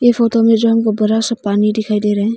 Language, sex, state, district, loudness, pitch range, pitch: Hindi, female, Arunachal Pradesh, Longding, -14 LUFS, 210-230 Hz, 220 Hz